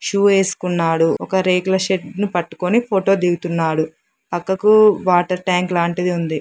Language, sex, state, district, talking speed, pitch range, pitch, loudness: Telugu, female, Andhra Pradesh, Srikakulam, 130 wpm, 170-195 Hz, 180 Hz, -17 LUFS